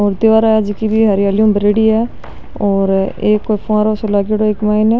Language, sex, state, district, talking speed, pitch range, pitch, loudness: Rajasthani, male, Rajasthan, Nagaur, 205 wpm, 205-220 Hz, 215 Hz, -14 LUFS